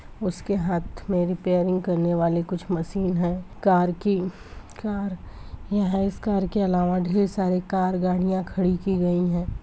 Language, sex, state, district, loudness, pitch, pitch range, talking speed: Hindi, female, Bihar, Purnia, -24 LUFS, 185 Hz, 180-195 Hz, 160 wpm